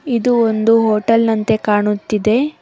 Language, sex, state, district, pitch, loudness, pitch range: Kannada, female, Karnataka, Bangalore, 225 Hz, -15 LUFS, 215-230 Hz